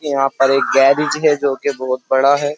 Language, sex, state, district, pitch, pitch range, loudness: Hindi, male, Uttar Pradesh, Jyotiba Phule Nagar, 140 Hz, 135-145 Hz, -15 LUFS